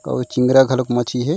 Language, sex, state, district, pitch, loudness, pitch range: Chhattisgarhi, male, Chhattisgarh, Raigarh, 125 Hz, -17 LUFS, 120-135 Hz